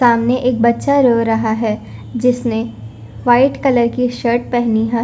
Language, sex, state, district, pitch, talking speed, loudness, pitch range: Hindi, female, Punjab, Fazilka, 235 Hz, 155 wpm, -15 LUFS, 225-250 Hz